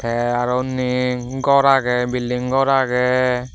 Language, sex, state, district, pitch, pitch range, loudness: Chakma, male, Tripura, Dhalai, 125 Hz, 125-130 Hz, -18 LUFS